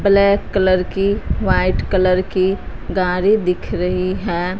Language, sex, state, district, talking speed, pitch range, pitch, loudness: Hindi, female, Punjab, Fazilka, 130 wpm, 180-200 Hz, 185 Hz, -17 LUFS